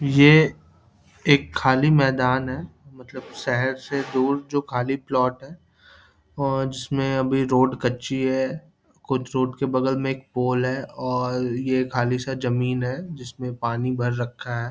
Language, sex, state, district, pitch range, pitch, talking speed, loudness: Hindi, male, Bihar, East Champaran, 125-135 Hz, 130 Hz, 150 wpm, -23 LUFS